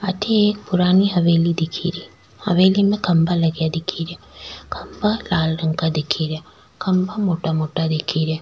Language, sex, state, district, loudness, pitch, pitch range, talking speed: Rajasthani, female, Rajasthan, Nagaur, -19 LUFS, 170 Hz, 160-190 Hz, 155 wpm